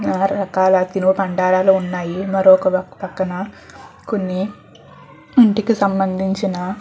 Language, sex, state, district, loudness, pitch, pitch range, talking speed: Telugu, female, Andhra Pradesh, Guntur, -17 LUFS, 190 Hz, 185-195 Hz, 70 wpm